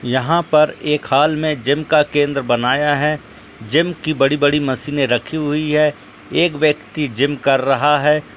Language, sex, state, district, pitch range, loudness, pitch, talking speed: Hindi, male, Uttar Pradesh, Etah, 135-150 Hz, -17 LUFS, 145 Hz, 165 wpm